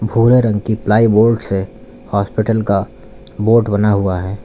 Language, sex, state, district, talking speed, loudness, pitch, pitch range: Hindi, male, Uttar Pradesh, Lalitpur, 150 wpm, -15 LUFS, 105 Hz, 100-110 Hz